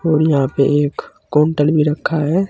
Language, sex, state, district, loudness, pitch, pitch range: Hindi, male, Uttar Pradesh, Saharanpur, -16 LUFS, 150 Hz, 145-160 Hz